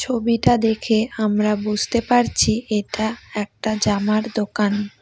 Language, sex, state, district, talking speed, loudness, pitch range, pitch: Bengali, female, West Bengal, Cooch Behar, 105 wpm, -20 LUFS, 210-230 Hz, 215 Hz